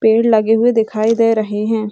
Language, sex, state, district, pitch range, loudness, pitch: Hindi, female, Bihar, Gaya, 215-225 Hz, -14 LUFS, 225 Hz